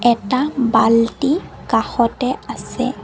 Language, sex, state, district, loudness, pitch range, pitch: Assamese, female, Assam, Kamrup Metropolitan, -18 LUFS, 230-260 Hz, 245 Hz